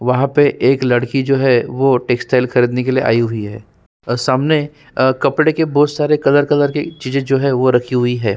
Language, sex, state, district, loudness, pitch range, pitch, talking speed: Hindi, male, Uttarakhand, Tehri Garhwal, -15 LUFS, 125-145 Hz, 130 Hz, 220 wpm